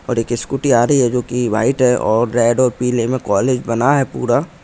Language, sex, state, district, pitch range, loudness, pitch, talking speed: Hindi, male, Chhattisgarh, Korba, 120-130 Hz, -16 LUFS, 125 Hz, 245 wpm